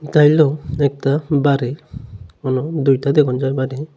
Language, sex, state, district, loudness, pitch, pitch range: Bengali, male, Tripura, Unakoti, -17 LUFS, 140 Hz, 130-150 Hz